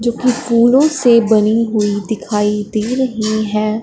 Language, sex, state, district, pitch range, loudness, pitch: Hindi, female, Punjab, Fazilka, 215-240 Hz, -14 LUFS, 220 Hz